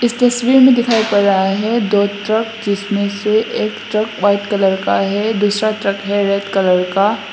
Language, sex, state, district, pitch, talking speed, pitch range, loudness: Hindi, female, Assam, Hailakandi, 205 Hz, 190 wpm, 200-220 Hz, -15 LUFS